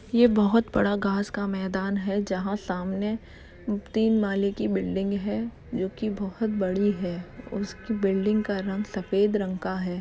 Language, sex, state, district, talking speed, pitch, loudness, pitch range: Hindi, female, Uttar Pradesh, Jalaun, 160 wpm, 200 Hz, -27 LUFS, 195-210 Hz